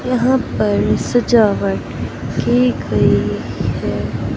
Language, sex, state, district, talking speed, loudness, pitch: Hindi, male, Madhya Pradesh, Katni, 80 wpm, -17 LUFS, 125 Hz